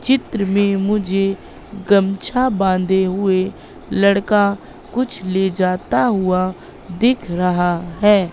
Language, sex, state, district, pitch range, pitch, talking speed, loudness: Hindi, female, Madhya Pradesh, Katni, 185-205 Hz, 195 Hz, 100 wpm, -17 LUFS